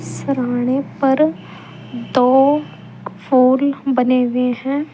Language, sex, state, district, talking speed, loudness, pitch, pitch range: Hindi, female, Uttar Pradesh, Saharanpur, 85 wpm, -16 LUFS, 265 Hz, 250-275 Hz